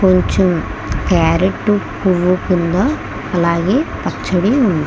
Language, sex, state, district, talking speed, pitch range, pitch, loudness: Telugu, female, Andhra Pradesh, Krishna, 85 wpm, 175-205 Hz, 185 Hz, -16 LUFS